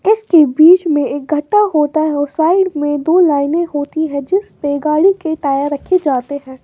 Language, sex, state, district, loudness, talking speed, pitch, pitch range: Hindi, female, Maharashtra, Washim, -14 LUFS, 200 wpm, 305 Hz, 285-345 Hz